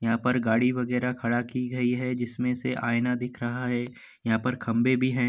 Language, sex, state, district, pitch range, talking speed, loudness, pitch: Hindi, male, Bihar, Gopalganj, 120-125 Hz, 240 wpm, -27 LUFS, 125 Hz